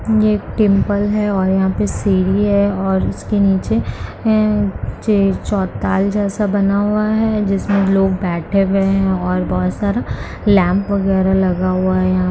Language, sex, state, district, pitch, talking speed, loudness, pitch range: Hindi, female, Bihar, Kishanganj, 195 Hz, 155 wpm, -16 LUFS, 185-205 Hz